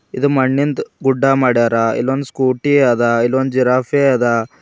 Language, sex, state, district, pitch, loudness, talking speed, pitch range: Kannada, male, Karnataka, Bidar, 130 Hz, -15 LUFS, 130 wpm, 120-135 Hz